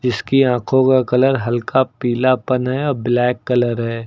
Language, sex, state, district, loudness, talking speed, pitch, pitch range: Hindi, male, Uttar Pradesh, Lucknow, -17 LUFS, 160 wpm, 125 Hz, 120-130 Hz